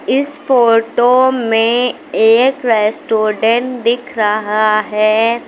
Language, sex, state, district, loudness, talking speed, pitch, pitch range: Hindi, female, Uttar Pradesh, Lucknow, -13 LUFS, 85 wpm, 230 Hz, 215-250 Hz